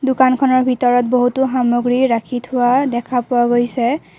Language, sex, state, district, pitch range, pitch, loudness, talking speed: Assamese, female, Assam, Kamrup Metropolitan, 245-260 Hz, 250 Hz, -16 LUFS, 130 wpm